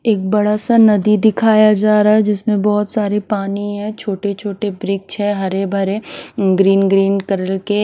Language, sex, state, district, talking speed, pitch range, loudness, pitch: Hindi, female, Himachal Pradesh, Shimla, 170 wpm, 195-215 Hz, -15 LUFS, 205 Hz